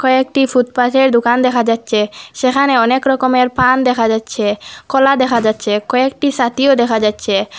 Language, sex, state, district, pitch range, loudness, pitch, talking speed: Bengali, female, Assam, Hailakandi, 225-265 Hz, -14 LUFS, 250 Hz, 150 wpm